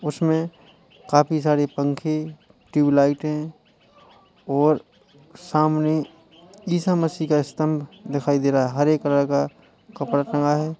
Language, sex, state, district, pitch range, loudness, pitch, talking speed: Hindi, male, Uttar Pradesh, Lalitpur, 145-160 Hz, -22 LUFS, 150 Hz, 110 wpm